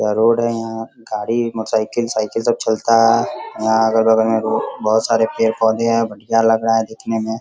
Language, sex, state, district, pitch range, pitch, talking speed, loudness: Hindi, male, Bihar, Sitamarhi, 110-115 Hz, 115 Hz, 205 wpm, -17 LUFS